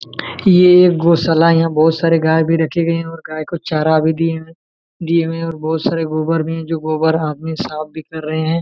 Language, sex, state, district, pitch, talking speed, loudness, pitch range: Hindi, male, Jharkhand, Jamtara, 160 Hz, 195 wpm, -15 LUFS, 160-165 Hz